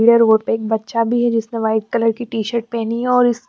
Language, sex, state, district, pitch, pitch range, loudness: Hindi, female, Chandigarh, Chandigarh, 230 Hz, 225-235 Hz, -17 LUFS